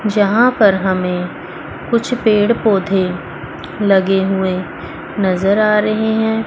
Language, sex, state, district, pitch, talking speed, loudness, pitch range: Hindi, female, Chandigarh, Chandigarh, 200 Hz, 110 wpm, -15 LUFS, 185-220 Hz